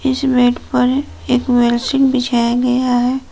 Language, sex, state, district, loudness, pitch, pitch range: Hindi, female, Jharkhand, Palamu, -15 LUFS, 250 Hz, 245-265 Hz